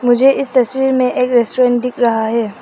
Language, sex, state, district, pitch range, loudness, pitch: Hindi, female, Arunachal Pradesh, Papum Pare, 235-255 Hz, -14 LUFS, 250 Hz